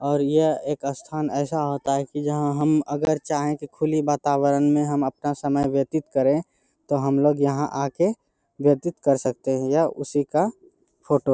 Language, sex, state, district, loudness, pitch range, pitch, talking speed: Hindi, male, Bihar, Bhagalpur, -23 LUFS, 140-155 Hz, 145 Hz, 190 wpm